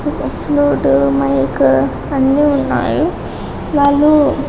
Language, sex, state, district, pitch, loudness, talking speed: Telugu, female, Telangana, Karimnagar, 270 Hz, -14 LUFS, 65 wpm